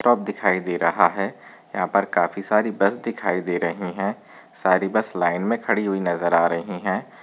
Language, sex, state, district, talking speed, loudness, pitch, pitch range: Hindi, male, Maharashtra, Chandrapur, 200 wpm, -22 LUFS, 95 Hz, 85-100 Hz